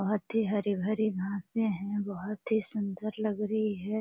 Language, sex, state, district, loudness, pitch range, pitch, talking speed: Hindi, female, Bihar, Jamui, -32 LUFS, 200-215 Hz, 210 Hz, 165 wpm